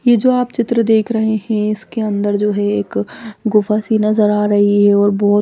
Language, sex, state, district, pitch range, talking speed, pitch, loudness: Hindi, female, Chandigarh, Chandigarh, 205-225 Hz, 220 wpm, 210 Hz, -15 LUFS